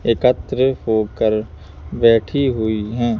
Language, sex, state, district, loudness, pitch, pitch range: Hindi, male, Madhya Pradesh, Bhopal, -18 LUFS, 110 Hz, 105-120 Hz